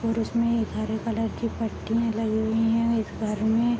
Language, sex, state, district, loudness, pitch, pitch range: Hindi, female, Jharkhand, Sahebganj, -26 LUFS, 225 Hz, 220-230 Hz